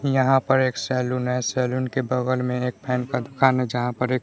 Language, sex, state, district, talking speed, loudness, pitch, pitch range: Hindi, male, Bihar, West Champaran, 240 wpm, -23 LUFS, 125 Hz, 125-130 Hz